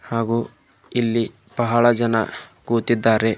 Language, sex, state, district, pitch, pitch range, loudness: Kannada, male, Karnataka, Bidar, 115 Hz, 115-120 Hz, -20 LUFS